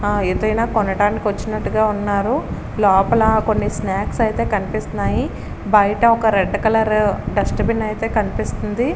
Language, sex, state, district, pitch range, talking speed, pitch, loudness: Telugu, female, Andhra Pradesh, Srikakulam, 205-220 Hz, 105 wpm, 215 Hz, -18 LUFS